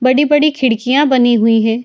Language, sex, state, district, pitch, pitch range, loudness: Hindi, female, Uttar Pradesh, Etah, 255 Hz, 230-285 Hz, -12 LUFS